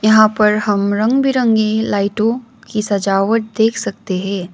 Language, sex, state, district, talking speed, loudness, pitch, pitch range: Hindi, female, Sikkim, Gangtok, 145 wpm, -16 LUFS, 215 Hz, 200-225 Hz